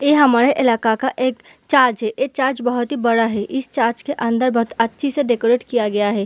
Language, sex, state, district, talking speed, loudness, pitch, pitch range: Hindi, female, Bihar, Samastipur, 230 wpm, -18 LUFS, 245 Hz, 230-270 Hz